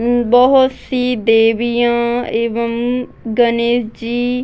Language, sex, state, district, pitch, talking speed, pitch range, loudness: Hindi, female, Bihar, Muzaffarpur, 240 Hz, 95 wpm, 235-245 Hz, -15 LUFS